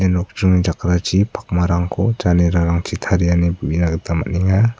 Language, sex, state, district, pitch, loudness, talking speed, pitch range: Garo, male, Meghalaya, South Garo Hills, 90 Hz, -17 LUFS, 115 wpm, 85-95 Hz